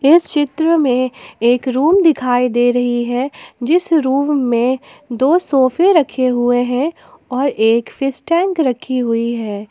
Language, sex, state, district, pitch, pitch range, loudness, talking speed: Hindi, female, Jharkhand, Ranchi, 260 Hz, 245-300 Hz, -15 LUFS, 150 wpm